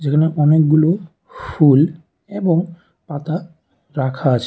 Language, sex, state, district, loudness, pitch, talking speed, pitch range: Bengali, male, Tripura, West Tripura, -16 LUFS, 160 Hz, 95 wpm, 145-170 Hz